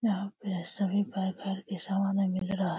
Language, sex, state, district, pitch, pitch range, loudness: Hindi, female, Uttar Pradesh, Deoria, 195 Hz, 190-200 Hz, -32 LUFS